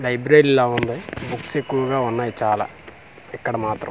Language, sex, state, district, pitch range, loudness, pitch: Telugu, male, Andhra Pradesh, Manyam, 120-135 Hz, -20 LUFS, 125 Hz